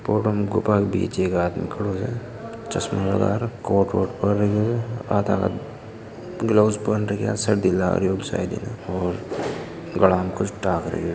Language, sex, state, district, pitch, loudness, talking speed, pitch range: Marwari, male, Rajasthan, Nagaur, 105 Hz, -23 LUFS, 155 wpm, 95-110 Hz